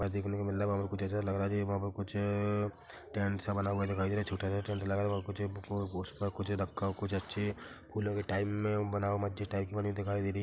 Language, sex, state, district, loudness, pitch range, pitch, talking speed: Hindi, male, Chhattisgarh, Korba, -35 LUFS, 100-105 Hz, 100 Hz, 235 wpm